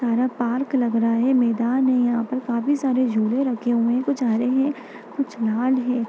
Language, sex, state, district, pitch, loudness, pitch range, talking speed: Hindi, female, Bihar, Bhagalpur, 245 Hz, -21 LUFS, 235-260 Hz, 205 wpm